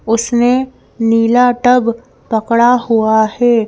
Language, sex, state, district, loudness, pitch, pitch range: Hindi, female, Madhya Pradesh, Bhopal, -12 LUFS, 235 Hz, 225-245 Hz